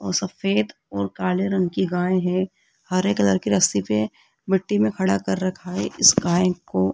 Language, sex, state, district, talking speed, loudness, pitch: Hindi, female, Rajasthan, Jaipur, 190 wpm, -21 LUFS, 180 Hz